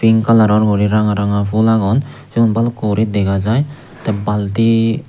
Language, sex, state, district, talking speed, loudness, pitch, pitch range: Chakma, male, Tripura, Unakoti, 165 wpm, -15 LUFS, 110 Hz, 105-115 Hz